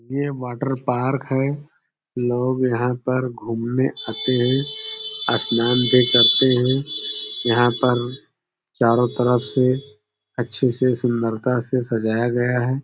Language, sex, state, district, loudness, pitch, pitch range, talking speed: Hindi, male, Uttar Pradesh, Deoria, -20 LUFS, 125 Hz, 120-130 Hz, 115 wpm